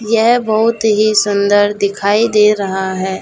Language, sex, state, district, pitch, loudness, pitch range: Hindi, female, Chhattisgarh, Raipur, 210 Hz, -13 LUFS, 200-220 Hz